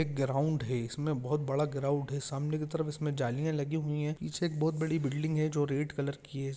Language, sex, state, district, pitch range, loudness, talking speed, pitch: Hindi, male, Jharkhand, Sahebganj, 140-155 Hz, -33 LUFS, 235 wpm, 150 Hz